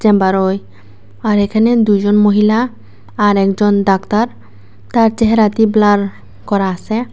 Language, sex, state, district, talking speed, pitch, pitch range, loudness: Bengali, female, Tripura, West Tripura, 120 wpm, 205 Hz, 190-220 Hz, -13 LUFS